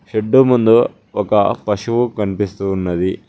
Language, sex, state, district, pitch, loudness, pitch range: Telugu, male, Telangana, Mahabubabad, 105 Hz, -16 LUFS, 95-120 Hz